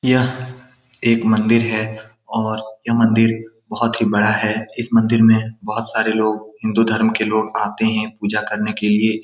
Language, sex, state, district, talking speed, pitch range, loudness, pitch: Hindi, male, Bihar, Saran, 175 wpm, 110-115 Hz, -18 LUFS, 110 Hz